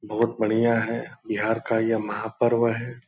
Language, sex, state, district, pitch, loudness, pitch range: Hindi, male, Bihar, Purnia, 115 Hz, -24 LUFS, 110-115 Hz